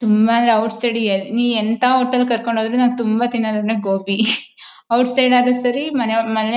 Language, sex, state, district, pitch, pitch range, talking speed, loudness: Kannada, female, Karnataka, Mysore, 230 Hz, 220-245 Hz, 165 wpm, -17 LUFS